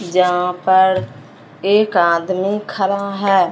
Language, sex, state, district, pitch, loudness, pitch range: Hindi, male, Punjab, Fazilka, 185 Hz, -16 LUFS, 175-195 Hz